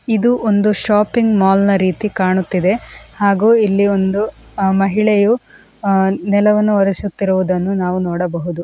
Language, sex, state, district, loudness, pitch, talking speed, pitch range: Kannada, female, Karnataka, Dakshina Kannada, -15 LUFS, 200 Hz, 95 wpm, 190-210 Hz